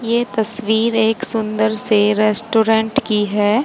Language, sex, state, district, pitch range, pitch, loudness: Hindi, female, Haryana, Charkhi Dadri, 215-230 Hz, 220 Hz, -16 LUFS